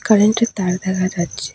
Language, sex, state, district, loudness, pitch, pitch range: Bengali, female, West Bengal, Alipurduar, -18 LUFS, 185 Hz, 180-215 Hz